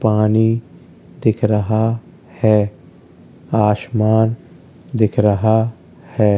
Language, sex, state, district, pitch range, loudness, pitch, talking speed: Hindi, male, Uttar Pradesh, Hamirpur, 90-110 Hz, -17 LUFS, 105 Hz, 75 wpm